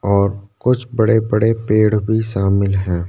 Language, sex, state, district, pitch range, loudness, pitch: Hindi, male, Maharashtra, Chandrapur, 100-110 Hz, -16 LUFS, 105 Hz